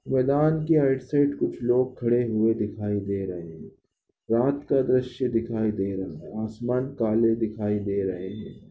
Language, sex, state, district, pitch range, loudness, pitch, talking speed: Hindi, male, Chhattisgarh, Balrampur, 105-130 Hz, -25 LUFS, 115 Hz, 170 wpm